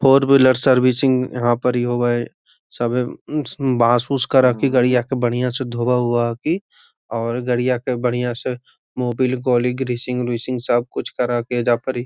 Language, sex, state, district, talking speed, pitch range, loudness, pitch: Magahi, male, Bihar, Gaya, 165 wpm, 120-130 Hz, -19 LUFS, 125 Hz